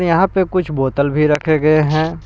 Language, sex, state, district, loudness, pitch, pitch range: Hindi, male, Jharkhand, Palamu, -15 LUFS, 155 Hz, 150-170 Hz